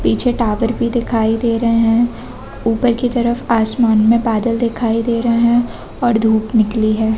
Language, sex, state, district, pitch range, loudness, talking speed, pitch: Hindi, female, Chhattisgarh, Bastar, 225-235 Hz, -15 LUFS, 175 wpm, 230 Hz